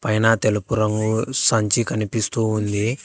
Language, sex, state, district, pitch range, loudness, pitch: Telugu, female, Telangana, Hyderabad, 110-115 Hz, -20 LUFS, 110 Hz